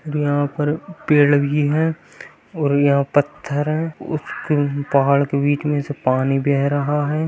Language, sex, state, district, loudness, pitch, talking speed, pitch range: Hindi, male, Bihar, Darbhanga, -19 LUFS, 145 Hz, 165 wpm, 140-150 Hz